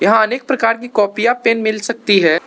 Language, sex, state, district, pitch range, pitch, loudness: Hindi, male, Arunachal Pradesh, Lower Dibang Valley, 205-235 Hz, 225 Hz, -15 LUFS